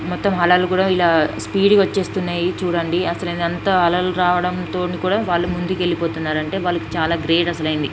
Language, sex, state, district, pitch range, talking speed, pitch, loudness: Telugu, female, Andhra Pradesh, Srikakulam, 170-180 Hz, 135 wpm, 175 Hz, -19 LUFS